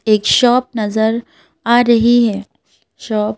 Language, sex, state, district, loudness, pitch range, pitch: Hindi, female, Madhya Pradesh, Bhopal, -14 LUFS, 215-240 Hz, 230 Hz